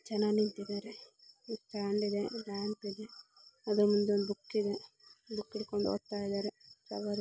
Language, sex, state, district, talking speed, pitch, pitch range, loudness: Kannada, female, Karnataka, Mysore, 110 wpm, 205 Hz, 205-215 Hz, -35 LUFS